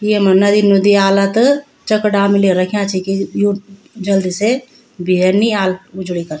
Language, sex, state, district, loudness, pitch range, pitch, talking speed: Garhwali, female, Uttarakhand, Tehri Garhwal, -14 LUFS, 190-210 Hz, 200 Hz, 170 wpm